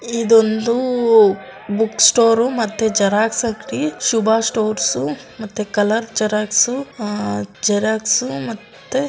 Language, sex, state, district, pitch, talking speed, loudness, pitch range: Kannada, female, Karnataka, Dakshina Kannada, 220 Hz, 100 wpm, -17 LUFS, 210-235 Hz